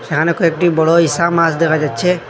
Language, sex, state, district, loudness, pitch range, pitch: Bengali, male, Assam, Hailakandi, -14 LUFS, 160-170 Hz, 165 Hz